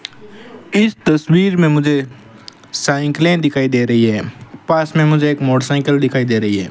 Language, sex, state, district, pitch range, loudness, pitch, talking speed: Hindi, male, Rajasthan, Bikaner, 125-155 Hz, -15 LUFS, 145 Hz, 160 wpm